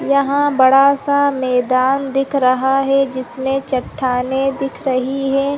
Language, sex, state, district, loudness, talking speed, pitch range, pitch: Hindi, female, Chhattisgarh, Korba, -16 LUFS, 120 wpm, 260-275 Hz, 270 Hz